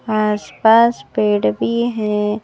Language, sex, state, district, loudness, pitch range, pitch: Hindi, female, Madhya Pradesh, Bhopal, -16 LUFS, 145-225 Hz, 210 Hz